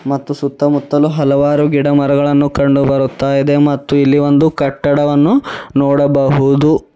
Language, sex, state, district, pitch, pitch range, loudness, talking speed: Kannada, male, Karnataka, Bidar, 140 Hz, 140-145 Hz, -13 LUFS, 120 wpm